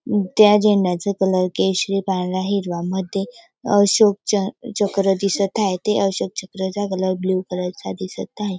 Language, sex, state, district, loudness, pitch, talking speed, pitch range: Marathi, female, Maharashtra, Dhule, -20 LUFS, 195 Hz, 160 wpm, 185-205 Hz